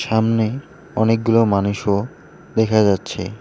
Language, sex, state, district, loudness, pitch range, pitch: Bengali, male, West Bengal, Alipurduar, -18 LUFS, 100-115 Hz, 110 Hz